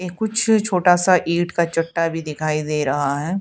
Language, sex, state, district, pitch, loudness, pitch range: Hindi, female, Haryana, Charkhi Dadri, 170 Hz, -19 LUFS, 155-185 Hz